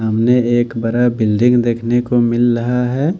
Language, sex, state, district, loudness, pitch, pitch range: Hindi, male, Delhi, New Delhi, -15 LUFS, 120 Hz, 115-125 Hz